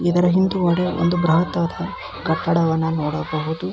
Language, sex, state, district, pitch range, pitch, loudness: Kannada, male, Karnataka, Belgaum, 160-175 Hz, 170 Hz, -20 LUFS